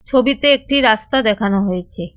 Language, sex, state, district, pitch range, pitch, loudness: Bengali, female, West Bengal, Cooch Behar, 195-275 Hz, 220 Hz, -15 LUFS